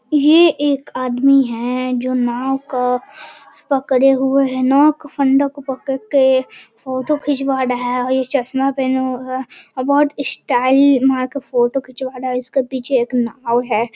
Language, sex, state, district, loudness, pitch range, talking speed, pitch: Hindi, male, Bihar, Jahanabad, -17 LUFS, 255-275 Hz, 175 wpm, 265 Hz